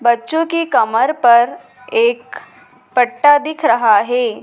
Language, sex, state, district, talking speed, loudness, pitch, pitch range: Hindi, female, Madhya Pradesh, Dhar, 120 wpm, -14 LUFS, 250 Hz, 235-320 Hz